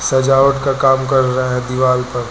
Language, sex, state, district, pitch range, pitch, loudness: Hindi, male, Uttar Pradesh, Lucknow, 125-135 Hz, 130 Hz, -14 LUFS